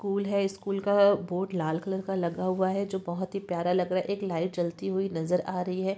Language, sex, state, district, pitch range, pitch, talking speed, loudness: Hindi, female, Uttarakhand, Tehri Garhwal, 180-195 Hz, 190 Hz, 260 wpm, -29 LUFS